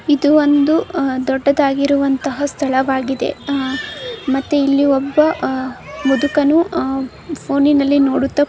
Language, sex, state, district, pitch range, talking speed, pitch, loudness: Kannada, female, Karnataka, Dharwad, 270-295 Hz, 85 wpm, 280 Hz, -16 LUFS